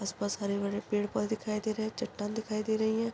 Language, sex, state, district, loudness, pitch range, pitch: Hindi, female, Chhattisgarh, Korba, -33 LUFS, 205-220 Hz, 215 Hz